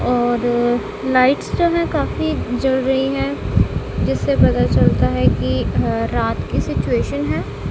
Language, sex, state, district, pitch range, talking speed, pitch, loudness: Hindi, female, Punjab, Kapurthala, 175-265 Hz, 140 wpm, 245 Hz, -18 LUFS